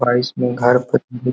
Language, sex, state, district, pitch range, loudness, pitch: Hindi, male, Uttar Pradesh, Hamirpur, 120-125 Hz, -17 LUFS, 125 Hz